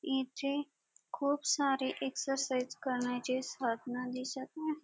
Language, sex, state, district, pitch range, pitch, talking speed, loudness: Marathi, female, Maharashtra, Dhule, 255-280 Hz, 265 Hz, 100 wpm, -35 LUFS